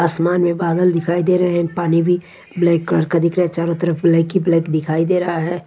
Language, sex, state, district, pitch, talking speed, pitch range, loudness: Hindi, female, Odisha, Nuapada, 170 Hz, 235 wpm, 165-175 Hz, -17 LUFS